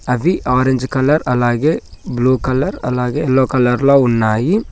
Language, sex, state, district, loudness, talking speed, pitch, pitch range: Telugu, male, Telangana, Mahabubabad, -15 LUFS, 140 wpm, 130 Hz, 125-140 Hz